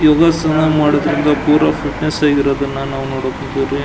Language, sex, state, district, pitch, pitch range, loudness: Kannada, male, Karnataka, Belgaum, 145 Hz, 135-155 Hz, -15 LUFS